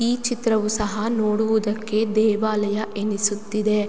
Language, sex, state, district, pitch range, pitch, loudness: Kannada, female, Karnataka, Mysore, 210-220 Hz, 215 Hz, -22 LUFS